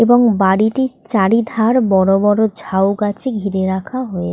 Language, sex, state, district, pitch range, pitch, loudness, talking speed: Bengali, female, West Bengal, North 24 Parganas, 195-235 Hz, 210 Hz, -15 LUFS, 140 wpm